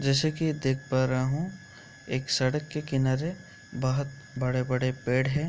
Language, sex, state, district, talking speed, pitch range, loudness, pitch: Hindi, male, Bihar, Kishanganj, 155 wpm, 130-150 Hz, -28 LUFS, 130 Hz